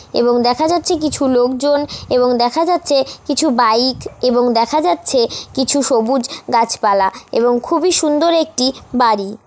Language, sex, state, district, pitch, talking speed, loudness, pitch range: Bengali, female, West Bengal, Dakshin Dinajpur, 265 Hz, 140 wpm, -15 LUFS, 240-310 Hz